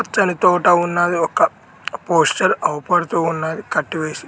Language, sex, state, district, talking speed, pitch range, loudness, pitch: Telugu, male, Telangana, Mahabubabad, 110 wpm, 160-175 Hz, -17 LUFS, 175 Hz